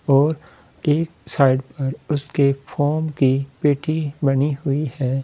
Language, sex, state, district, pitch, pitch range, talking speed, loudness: Hindi, male, Delhi, New Delhi, 140 Hz, 135-150 Hz, 125 wpm, -21 LUFS